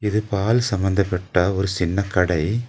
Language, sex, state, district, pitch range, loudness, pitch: Tamil, male, Tamil Nadu, Nilgiris, 90-105 Hz, -21 LUFS, 100 Hz